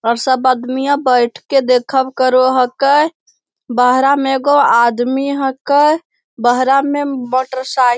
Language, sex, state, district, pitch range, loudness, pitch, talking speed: Hindi, male, Bihar, Jamui, 250-280 Hz, -14 LUFS, 260 Hz, 150 wpm